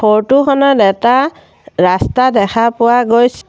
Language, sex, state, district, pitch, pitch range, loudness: Assamese, female, Assam, Sonitpur, 240 Hz, 215-260 Hz, -11 LUFS